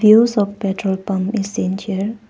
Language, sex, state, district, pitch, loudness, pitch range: English, female, Arunachal Pradesh, Papum Pare, 200 Hz, -19 LUFS, 195-215 Hz